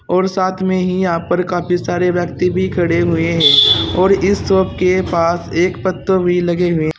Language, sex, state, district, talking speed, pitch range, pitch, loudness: Hindi, male, Uttar Pradesh, Saharanpur, 205 wpm, 170-185 Hz, 180 Hz, -14 LUFS